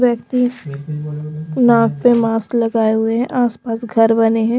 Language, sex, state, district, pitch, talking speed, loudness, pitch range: Hindi, female, Himachal Pradesh, Shimla, 225 Hz, 130 wpm, -16 LUFS, 220-240 Hz